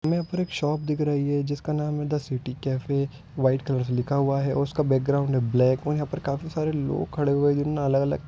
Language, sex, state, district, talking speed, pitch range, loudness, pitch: Hindi, male, Andhra Pradesh, Anantapur, 260 wpm, 135-150 Hz, -25 LUFS, 140 Hz